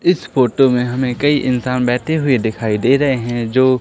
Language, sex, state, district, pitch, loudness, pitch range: Hindi, male, Madhya Pradesh, Katni, 130 Hz, -16 LUFS, 120-135 Hz